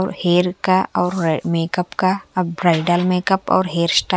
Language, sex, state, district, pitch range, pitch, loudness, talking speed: Hindi, female, Haryana, Charkhi Dadri, 175-185 Hz, 180 Hz, -18 LUFS, 185 wpm